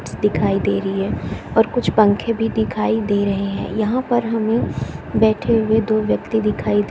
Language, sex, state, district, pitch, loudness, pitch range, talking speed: Hindi, female, Chhattisgarh, Korba, 215 Hz, -19 LUFS, 200-225 Hz, 190 wpm